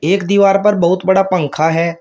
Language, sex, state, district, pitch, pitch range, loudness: Hindi, male, Uttar Pradesh, Shamli, 185 Hz, 170-195 Hz, -13 LUFS